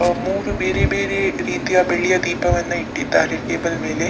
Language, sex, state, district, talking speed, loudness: Kannada, female, Karnataka, Dakshina Kannada, 145 wpm, -19 LUFS